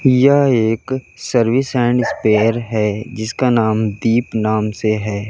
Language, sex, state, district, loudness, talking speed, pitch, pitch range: Hindi, male, Uttar Pradesh, Lalitpur, -16 LUFS, 135 wpm, 115 Hz, 110-125 Hz